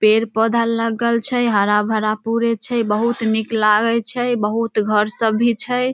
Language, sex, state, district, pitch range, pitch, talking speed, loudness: Maithili, female, Bihar, Samastipur, 215-235 Hz, 225 Hz, 150 wpm, -17 LUFS